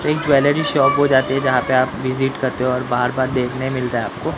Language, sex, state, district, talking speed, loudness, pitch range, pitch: Hindi, male, Maharashtra, Mumbai Suburban, 245 wpm, -18 LUFS, 125-135 Hz, 130 Hz